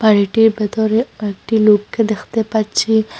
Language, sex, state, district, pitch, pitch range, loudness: Bengali, female, Assam, Hailakandi, 215 Hz, 210-225 Hz, -16 LUFS